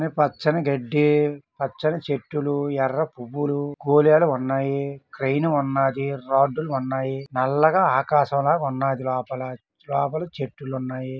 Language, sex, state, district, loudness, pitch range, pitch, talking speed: Telugu, male, Andhra Pradesh, Srikakulam, -23 LUFS, 135-150 Hz, 140 Hz, 105 wpm